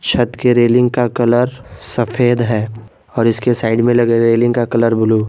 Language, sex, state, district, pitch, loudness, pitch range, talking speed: Hindi, male, Jharkhand, Garhwa, 120 Hz, -14 LUFS, 115-120 Hz, 190 wpm